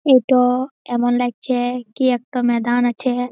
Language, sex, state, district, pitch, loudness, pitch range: Bengali, female, West Bengal, Malda, 245 Hz, -18 LUFS, 245-255 Hz